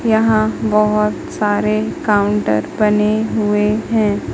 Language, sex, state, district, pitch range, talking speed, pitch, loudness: Hindi, female, Madhya Pradesh, Katni, 210-215 Hz, 95 wpm, 210 Hz, -16 LUFS